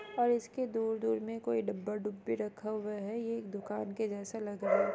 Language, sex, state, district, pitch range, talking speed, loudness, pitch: Hindi, female, Bihar, East Champaran, 200-225 Hz, 195 wpm, -36 LUFS, 210 Hz